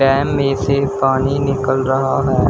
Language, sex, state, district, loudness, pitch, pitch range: Hindi, male, Uttar Pradesh, Shamli, -16 LUFS, 135 Hz, 135-140 Hz